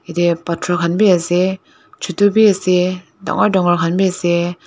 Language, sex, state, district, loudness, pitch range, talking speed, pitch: Nagamese, female, Nagaland, Dimapur, -15 LUFS, 175-190 Hz, 140 wpm, 180 Hz